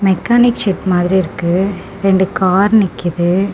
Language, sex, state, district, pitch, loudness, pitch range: Tamil, female, Tamil Nadu, Namakkal, 190 Hz, -14 LUFS, 180-200 Hz